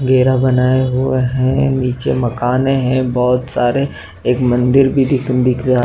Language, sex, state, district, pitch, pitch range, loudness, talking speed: Hindi, male, Uttar Pradesh, Muzaffarnagar, 130 Hz, 125-130 Hz, -15 LUFS, 145 wpm